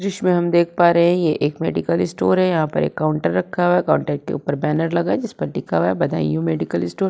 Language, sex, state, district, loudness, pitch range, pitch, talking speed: Hindi, female, Uttar Pradesh, Budaun, -19 LUFS, 145-175 Hz, 165 Hz, 270 wpm